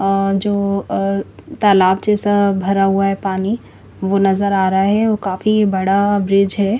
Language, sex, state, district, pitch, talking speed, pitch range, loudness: Hindi, female, Chandigarh, Chandigarh, 195 Hz, 165 wpm, 195-205 Hz, -16 LUFS